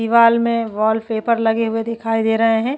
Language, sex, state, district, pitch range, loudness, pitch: Hindi, female, Chhattisgarh, Jashpur, 225-230 Hz, -17 LUFS, 225 Hz